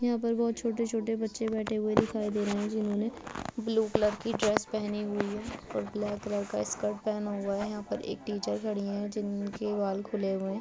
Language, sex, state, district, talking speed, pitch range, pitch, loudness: Hindi, female, Uttar Pradesh, Gorakhpur, 210 wpm, 205-220 Hz, 210 Hz, -32 LUFS